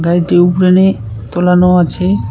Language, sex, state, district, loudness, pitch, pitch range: Bengali, male, West Bengal, Cooch Behar, -11 LUFS, 175 Hz, 110-180 Hz